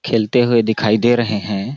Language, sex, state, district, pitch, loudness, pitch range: Hindi, male, Chhattisgarh, Balrampur, 115 Hz, -16 LUFS, 105-120 Hz